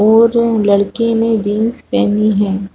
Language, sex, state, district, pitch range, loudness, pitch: Hindi, female, Chhattisgarh, Rajnandgaon, 205-230 Hz, -13 LUFS, 215 Hz